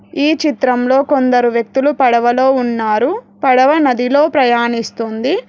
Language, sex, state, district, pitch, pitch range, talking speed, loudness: Telugu, female, Telangana, Hyderabad, 255 Hz, 240-285 Hz, 100 wpm, -13 LUFS